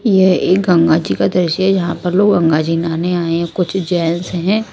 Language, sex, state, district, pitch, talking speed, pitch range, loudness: Hindi, female, Punjab, Kapurthala, 180 Hz, 215 wpm, 170-190 Hz, -14 LUFS